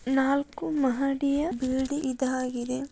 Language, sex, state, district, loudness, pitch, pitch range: Kannada, female, Karnataka, Dharwad, -28 LUFS, 270 Hz, 255-280 Hz